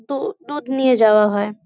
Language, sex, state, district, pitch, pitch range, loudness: Bengali, female, West Bengal, North 24 Parganas, 255 Hz, 210-290 Hz, -17 LUFS